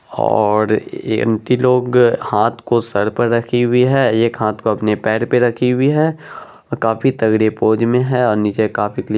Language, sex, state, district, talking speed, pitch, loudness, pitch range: Hindi, male, Bihar, Araria, 190 wpm, 115 Hz, -15 LUFS, 110-125 Hz